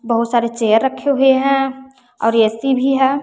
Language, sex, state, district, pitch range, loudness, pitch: Hindi, female, Bihar, West Champaran, 230-270 Hz, -16 LUFS, 265 Hz